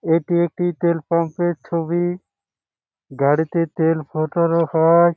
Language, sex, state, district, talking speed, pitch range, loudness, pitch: Bengali, male, West Bengal, Jhargram, 115 wpm, 160-170 Hz, -19 LUFS, 170 Hz